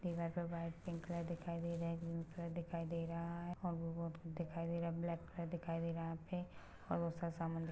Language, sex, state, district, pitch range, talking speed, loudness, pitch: Hindi, female, Chhattisgarh, Rajnandgaon, 165-170 Hz, 165 wpm, -44 LUFS, 170 Hz